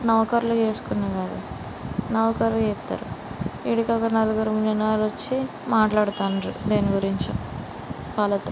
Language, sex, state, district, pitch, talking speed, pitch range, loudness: Telugu, female, Andhra Pradesh, Srikakulam, 215 Hz, 85 wpm, 205-225 Hz, -24 LUFS